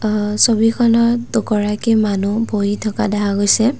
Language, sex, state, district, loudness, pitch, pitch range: Assamese, female, Assam, Kamrup Metropolitan, -16 LUFS, 215 Hz, 210-225 Hz